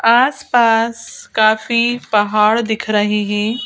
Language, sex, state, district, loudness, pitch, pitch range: Hindi, female, Madhya Pradesh, Bhopal, -15 LUFS, 225 Hz, 215-235 Hz